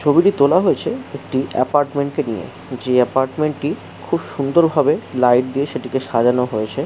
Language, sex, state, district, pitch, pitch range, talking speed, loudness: Bengali, male, West Bengal, Jhargram, 135 Hz, 125-145 Hz, 150 wpm, -18 LUFS